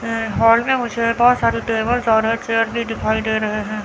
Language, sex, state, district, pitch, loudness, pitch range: Hindi, female, Chandigarh, Chandigarh, 230 Hz, -18 LUFS, 220-235 Hz